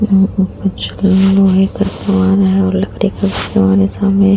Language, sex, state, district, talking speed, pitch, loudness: Hindi, female, Uttar Pradesh, Muzaffarnagar, 180 wpm, 190 Hz, -13 LUFS